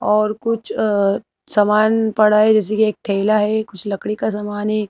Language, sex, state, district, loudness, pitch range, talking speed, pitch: Hindi, female, Madhya Pradesh, Bhopal, -17 LUFS, 210-215 Hz, 195 wpm, 215 Hz